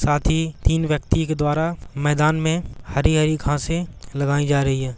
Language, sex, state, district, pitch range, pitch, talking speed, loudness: Hindi, male, Bihar, Gaya, 140-160 Hz, 150 Hz, 145 wpm, -21 LUFS